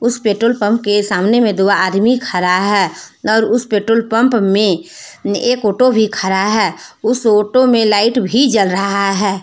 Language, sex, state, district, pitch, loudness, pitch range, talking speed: Hindi, female, Jharkhand, Deoghar, 210 Hz, -14 LUFS, 200-230 Hz, 180 wpm